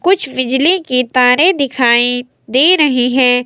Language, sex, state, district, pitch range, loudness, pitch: Hindi, female, Himachal Pradesh, Shimla, 250-295 Hz, -12 LUFS, 255 Hz